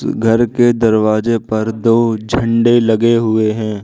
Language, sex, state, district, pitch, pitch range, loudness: Hindi, male, Arunachal Pradesh, Lower Dibang Valley, 115 Hz, 110-115 Hz, -13 LUFS